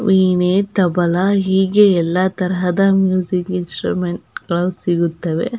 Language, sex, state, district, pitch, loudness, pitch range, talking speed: Kannada, female, Karnataka, Belgaum, 185 Hz, -16 LUFS, 175-190 Hz, 105 wpm